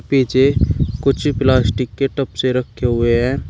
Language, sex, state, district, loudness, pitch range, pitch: Hindi, male, Uttar Pradesh, Shamli, -17 LUFS, 120-135 Hz, 130 Hz